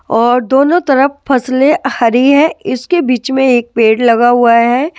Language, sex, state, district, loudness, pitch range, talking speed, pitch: Hindi, male, Delhi, New Delhi, -11 LUFS, 240-280 Hz, 180 wpm, 255 Hz